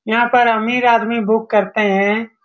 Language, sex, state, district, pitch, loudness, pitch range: Hindi, male, Bihar, Saran, 225 Hz, -15 LUFS, 215-235 Hz